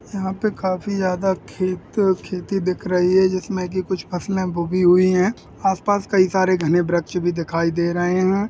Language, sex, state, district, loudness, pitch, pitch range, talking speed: Hindi, male, Uttar Pradesh, Jalaun, -20 LUFS, 185 Hz, 180-190 Hz, 190 wpm